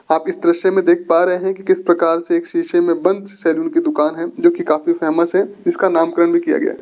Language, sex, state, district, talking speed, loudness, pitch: Hindi, male, Rajasthan, Jaipur, 270 wpm, -16 LUFS, 180 Hz